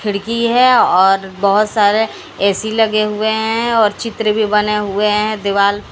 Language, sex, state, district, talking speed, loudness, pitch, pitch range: Hindi, female, Odisha, Sambalpur, 170 wpm, -14 LUFS, 210 Hz, 205-220 Hz